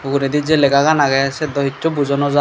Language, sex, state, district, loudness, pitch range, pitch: Chakma, male, Tripura, Dhalai, -16 LUFS, 140-150 Hz, 140 Hz